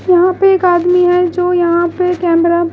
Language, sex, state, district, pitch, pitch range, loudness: Hindi, female, Maharashtra, Gondia, 355 Hz, 345-360 Hz, -12 LUFS